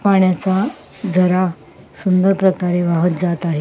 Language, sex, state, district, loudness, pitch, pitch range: Marathi, female, Maharashtra, Sindhudurg, -17 LUFS, 185 Hz, 175-190 Hz